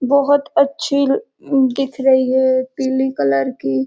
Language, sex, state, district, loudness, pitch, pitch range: Hindi, female, Bihar, Gopalganj, -16 LUFS, 265 Hz, 260-280 Hz